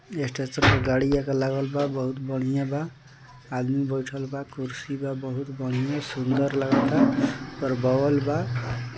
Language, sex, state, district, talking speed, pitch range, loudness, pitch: Bhojpuri, male, Bihar, East Champaran, 125 wpm, 130-140 Hz, -26 LUFS, 135 Hz